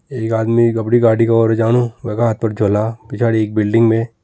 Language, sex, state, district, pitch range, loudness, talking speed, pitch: Kumaoni, male, Uttarakhand, Tehri Garhwal, 110-115 Hz, -15 LUFS, 225 wpm, 115 Hz